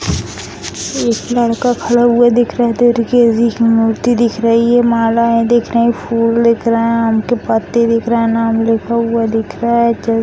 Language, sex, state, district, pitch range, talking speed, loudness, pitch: Hindi, female, Bihar, Samastipur, 230-235 Hz, 215 wpm, -13 LUFS, 235 Hz